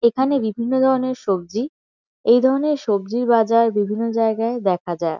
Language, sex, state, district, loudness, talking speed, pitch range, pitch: Bengali, female, West Bengal, Kolkata, -19 LUFS, 140 wpm, 205-255 Hz, 230 Hz